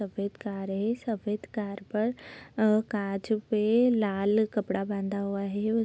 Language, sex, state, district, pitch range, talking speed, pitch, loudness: Hindi, female, Bihar, Darbhanga, 200-220 Hz, 145 wpm, 210 Hz, -29 LUFS